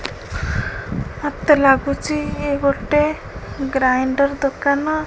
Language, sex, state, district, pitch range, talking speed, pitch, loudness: Odia, female, Odisha, Khordha, 275-295 Hz, 70 wpm, 280 Hz, -19 LUFS